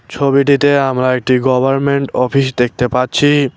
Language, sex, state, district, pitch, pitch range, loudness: Bengali, male, West Bengal, Cooch Behar, 135 Hz, 130-140 Hz, -13 LUFS